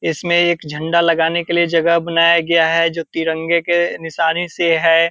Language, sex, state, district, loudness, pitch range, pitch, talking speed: Hindi, male, Bihar, Purnia, -16 LUFS, 165-170 Hz, 165 Hz, 190 wpm